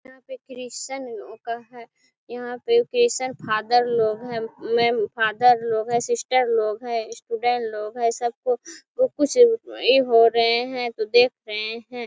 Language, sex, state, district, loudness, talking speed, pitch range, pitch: Hindi, female, Chhattisgarh, Korba, -22 LUFS, 160 wpm, 230-260 Hz, 240 Hz